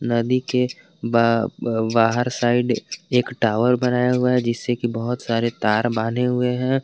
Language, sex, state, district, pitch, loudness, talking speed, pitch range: Hindi, male, Jharkhand, Garhwa, 120 Hz, -21 LUFS, 150 wpm, 115-125 Hz